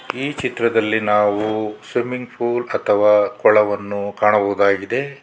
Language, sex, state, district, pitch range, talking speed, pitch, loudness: Kannada, male, Karnataka, Bangalore, 105-120 Hz, 90 wpm, 105 Hz, -18 LUFS